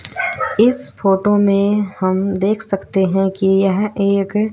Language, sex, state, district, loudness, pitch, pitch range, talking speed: Hindi, female, Haryana, Rohtak, -16 LUFS, 200 Hz, 195-210 Hz, 105 wpm